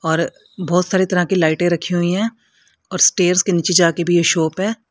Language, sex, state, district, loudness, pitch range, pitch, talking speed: Hindi, female, Haryana, Rohtak, -16 LUFS, 170-185 Hz, 180 Hz, 220 wpm